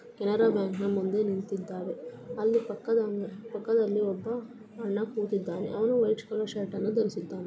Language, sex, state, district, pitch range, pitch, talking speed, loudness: Kannada, female, Karnataka, Belgaum, 200-225 Hz, 215 Hz, 135 wpm, -30 LUFS